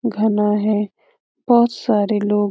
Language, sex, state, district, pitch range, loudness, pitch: Hindi, female, Bihar, Lakhisarai, 210-235 Hz, -18 LUFS, 210 Hz